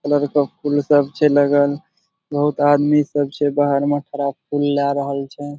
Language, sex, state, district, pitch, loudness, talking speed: Maithili, male, Bihar, Supaul, 145 Hz, -18 LUFS, 195 wpm